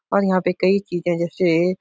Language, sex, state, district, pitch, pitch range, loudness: Hindi, male, Uttar Pradesh, Etah, 180 Hz, 175-190 Hz, -20 LUFS